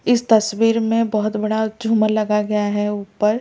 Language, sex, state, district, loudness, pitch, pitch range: Hindi, male, Delhi, New Delhi, -18 LUFS, 215 Hz, 210-225 Hz